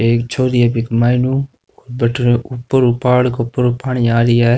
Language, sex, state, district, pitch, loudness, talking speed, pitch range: Rajasthani, male, Rajasthan, Nagaur, 120 Hz, -15 LUFS, 170 wpm, 120-125 Hz